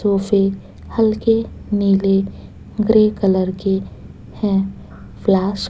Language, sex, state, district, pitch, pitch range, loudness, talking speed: Hindi, female, Chhattisgarh, Raipur, 200 Hz, 195-215 Hz, -18 LUFS, 85 wpm